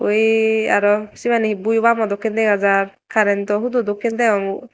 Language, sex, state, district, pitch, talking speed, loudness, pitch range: Chakma, female, Tripura, Dhalai, 220 Hz, 150 wpm, -18 LUFS, 205-225 Hz